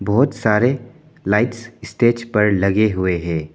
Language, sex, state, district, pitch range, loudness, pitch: Hindi, male, Arunachal Pradesh, Papum Pare, 100-120 Hz, -18 LUFS, 110 Hz